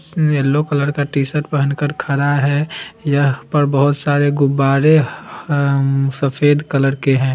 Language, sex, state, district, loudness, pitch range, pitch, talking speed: Hindi, male, Bihar, Vaishali, -16 LUFS, 140-145 Hz, 145 Hz, 155 wpm